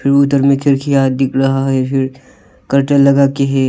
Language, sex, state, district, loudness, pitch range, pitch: Hindi, male, Arunachal Pradesh, Lower Dibang Valley, -13 LUFS, 135-140 Hz, 135 Hz